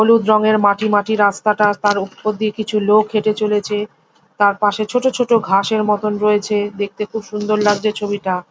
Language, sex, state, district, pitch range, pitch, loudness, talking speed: Bengali, female, West Bengal, Jhargram, 205-215 Hz, 210 Hz, -17 LUFS, 175 wpm